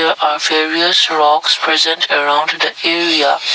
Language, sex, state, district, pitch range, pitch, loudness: English, male, Assam, Kamrup Metropolitan, 150-165 Hz, 155 Hz, -12 LUFS